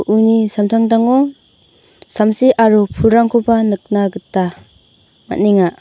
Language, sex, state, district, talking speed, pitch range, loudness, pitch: Garo, female, Meghalaya, North Garo Hills, 80 wpm, 205-230 Hz, -14 LUFS, 220 Hz